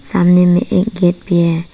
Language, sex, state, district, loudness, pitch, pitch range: Hindi, female, Arunachal Pradesh, Papum Pare, -13 LUFS, 180 Hz, 175-185 Hz